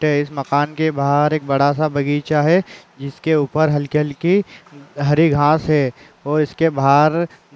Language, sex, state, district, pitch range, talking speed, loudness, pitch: Hindi, male, Uttar Pradesh, Muzaffarnagar, 145-155 Hz, 150 wpm, -17 LUFS, 150 Hz